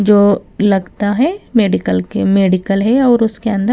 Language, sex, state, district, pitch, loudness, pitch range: Hindi, female, Punjab, Kapurthala, 205 Hz, -14 LUFS, 195-225 Hz